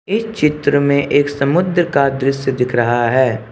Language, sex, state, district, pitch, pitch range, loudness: Hindi, male, Arunachal Pradesh, Lower Dibang Valley, 140 Hz, 130-150 Hz, -15 LUFS